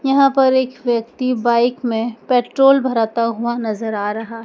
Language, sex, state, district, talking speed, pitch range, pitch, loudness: Hindi, female, Madhya Pradesh, Dhar, 160 wpm, 230-260 Hz, 240 Hz, -17 LUFS